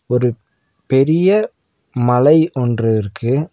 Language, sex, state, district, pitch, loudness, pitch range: Tamil, male, Tamil Nadu, Nilgiris, 125 Hz, -15 LUFS, 120-155 Hz